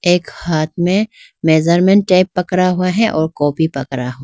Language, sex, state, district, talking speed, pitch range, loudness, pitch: Hindi, female, Arunachal Pradesh, Lower Dibang Valley, 155 wpm, 155-185 Hz, -15 LUFS, 175 Hz